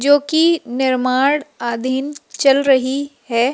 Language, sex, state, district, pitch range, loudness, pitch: Hindi, female, Madhya Pradesh, Umaria, 255-285 Hz, -17 LUFS, 270 Hz